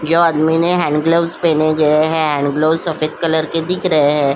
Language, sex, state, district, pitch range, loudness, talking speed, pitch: Hindi, female, Uttar Pradesh, Jyotiba Phule Nagar, 155-165 Hz, -15 LUFS, 220 wpm, 160 Hz